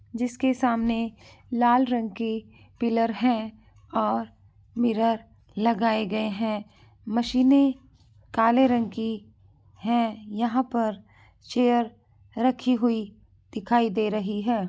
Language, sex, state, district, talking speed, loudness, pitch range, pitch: Angika, male, Bihar, Madhepura, 105 wpm, -25 LUFS, 210-240 Hz, 230 Hz